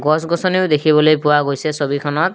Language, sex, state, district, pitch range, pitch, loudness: Assamese, male, Assam, Kamrup Metropolitan, 145-160 Hz, 150 Hz, -16 LUFS